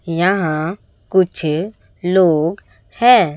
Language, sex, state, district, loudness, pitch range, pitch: Hindi, female, Chhattisgarh, Raipur, -16 LUFS, 160-195 Hz, 180 Hz